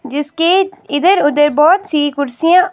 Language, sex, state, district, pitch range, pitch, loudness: Hindi, female, Himachal Pradesh, Shimla, 290-365 Hz, 310 Hz, -13 LUFS